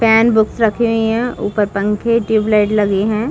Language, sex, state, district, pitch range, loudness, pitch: Hindi, female, Chhattisgarh, Bastar, 210-230 Hz, -15 LUFS, 220 Hz